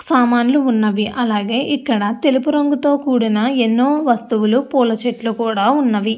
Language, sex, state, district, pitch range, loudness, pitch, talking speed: Telugu, female, Andhra Pradesh, Anantapur, 225-275 Hz, -16 LUFS, 245 Hz, 115 wpm